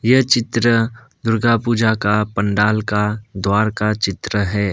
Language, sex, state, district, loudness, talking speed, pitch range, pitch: Hindi, male, Assam, Kamrup Metropolitan, -17 LUFS, 125 wpm, 105-115 Hz, 110 Hz